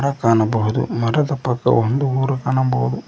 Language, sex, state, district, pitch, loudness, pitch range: Kannada, male, Karnataka, Koppal, 125 Hz, -18 LUFS, 115-135 Hz